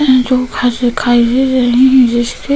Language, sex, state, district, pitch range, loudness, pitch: Hindi, female, Goa, North and South Goa, 240-260 Hz, -11 LUFS, 250 Hz